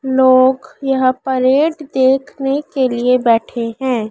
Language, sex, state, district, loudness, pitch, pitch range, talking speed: Hindi, female, Madhya Pradesh, Dhar, -15 LUFS, 260 Hz, 255-270 Hz, 115 wpm